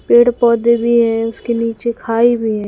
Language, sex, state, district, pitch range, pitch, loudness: Hindi, female, Madhya Pradesh, Umaria, 225-235 Hz, 235 Hz, -14 LUFS